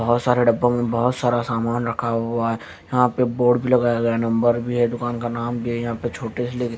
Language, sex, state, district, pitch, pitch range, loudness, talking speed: Hindi, male, Haryana, Jhajjar, 120 Hz, 115-120 Hz, -21 LUFS, 285 wpm